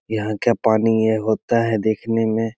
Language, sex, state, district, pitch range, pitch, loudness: Hindi, male, Bihar, Begusarai, 110-115 Hz, 110 Hz, -19 LUFS